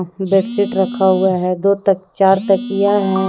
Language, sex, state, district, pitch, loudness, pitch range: Hindi, female, Jharkhand, Deoghar, 195 Hz, -15 LUFS, 190-200 Hz